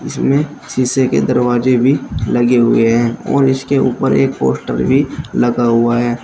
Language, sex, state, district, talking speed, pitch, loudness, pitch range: Hindi, male, Uttar Pradesh, Shamli, 165 wpm, 120 Hz, -14 LUFS, 120-130 Hz